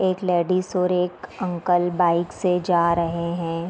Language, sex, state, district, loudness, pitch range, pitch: Hindi, female, Bihar, Darbhanga, -22 LUFS, 170-180 Hz, 175 Hz